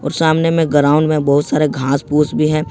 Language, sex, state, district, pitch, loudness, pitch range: Hindi, male, Jharkhand, Ranchi, 150 Hz, -14 LUFS, 145-155 Hz